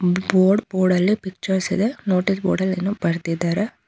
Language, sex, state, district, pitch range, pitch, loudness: Kannada, female, Karnataka, Bangalore, 185-195 Hz, 190 Hz, -20 LUFS